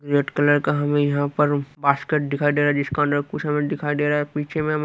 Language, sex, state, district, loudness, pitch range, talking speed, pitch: Hindi, male, Haryana, Rohtak, -21 LUFS, 145-150 Hz, 270 wpm, 145 Hz